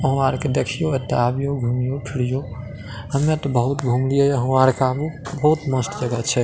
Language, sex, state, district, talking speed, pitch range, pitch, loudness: Maithili, male, Bihar, Madhepura, 160 wpm, 125-140 Hz, 130 Hz, -21 LUFS